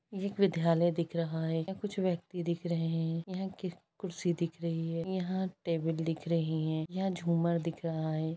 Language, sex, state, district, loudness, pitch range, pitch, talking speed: Hindi, female, Bihar, Gaya, -34 LUFS, 165-185 Hz, 170 Hz, 195 wpm